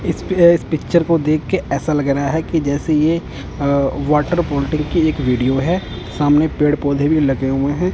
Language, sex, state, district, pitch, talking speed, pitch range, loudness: Hindi, male, Punjab, Kapurthala, 150 Hz, 190 wpm, 140-160 Hz, -17 LUFS